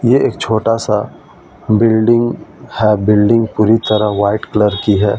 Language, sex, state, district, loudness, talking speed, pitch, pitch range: Hindi, male, Delhi, New Delhi, -13 LUFS, 150 wpm, 110 Hz, 105-115 Hz